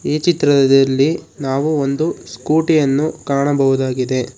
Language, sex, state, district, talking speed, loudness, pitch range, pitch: Kannada, male, Karnataka, Bangalore, 95 wpm, -16 LUFS, 135-155 Hz, 140 Hz